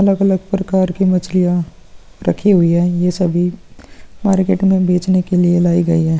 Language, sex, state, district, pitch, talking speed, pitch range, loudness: Hindi, male, Uttar Pradesh, Varanasi, 180 Hz, 165 wpm, 175-190 Hz, -15 LUFS